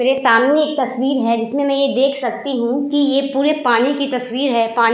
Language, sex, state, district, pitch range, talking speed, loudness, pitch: Hindi, female, Uttar Pradesh, Budaun, 240-275 Hz, 245 wpm, -16 LUFS, 265 Hz